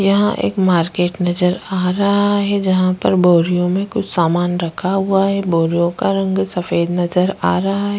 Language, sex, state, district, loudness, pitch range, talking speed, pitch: Hindi, female, Uttarakhand, Tehri Garhwal, -16 LUFS, 175-195 Hz, 180 wpm, 185 Hz